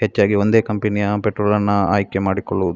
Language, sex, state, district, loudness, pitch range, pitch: Kannada, male, Karnataka, Dakshina Kannada, -18 LUFS, 100-105 Hz, 105 Hz